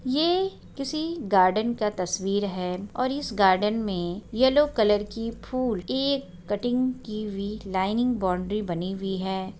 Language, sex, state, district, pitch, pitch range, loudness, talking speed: Hindi, female, Chhattisgarh, Raigarh, 210 Hz, 190-255 Hz, -26 LUFS, 145 wpm